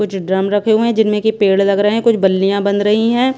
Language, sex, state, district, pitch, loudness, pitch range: Hindi, female, Punjab, Pathankot, 210 Hz, -14 LUFS, 200-220 Hz